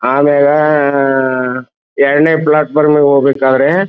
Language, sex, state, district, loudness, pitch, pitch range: Kannada, male, Karnataka, Dharwad, -11 LUFS, 140 Hz, 135-150 Hz